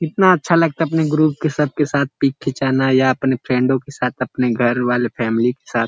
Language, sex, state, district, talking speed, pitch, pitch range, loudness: Hindi, male, Uttar Pradesh, Gorakhpur, 225 wpm, 135 Hz, 125-155 Hz, -17 LUFS